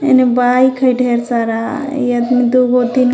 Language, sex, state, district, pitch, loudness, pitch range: Magahi, female, Jharkhand, Palamu, 250 Hz, -13 LUFS, 245-255 Hz